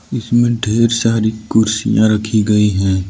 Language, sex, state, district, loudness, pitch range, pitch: Hindi, male, Arunachal Pradesh, Lower Dibang Valley, -14 LUFS, 105-115 Hz, 110 Hz